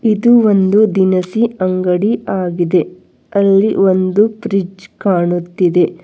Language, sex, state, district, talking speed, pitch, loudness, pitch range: Kannada, female, Karnataka, Bangalore, 90 wpm, 190 Hz, -14 LUFS, 180-210 Hz